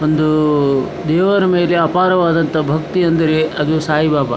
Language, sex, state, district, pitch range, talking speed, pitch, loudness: Kannada, male, Karnataka, Dharwad, 155-175 Hz, 110 wpm, 155 Hz, -15 LUFS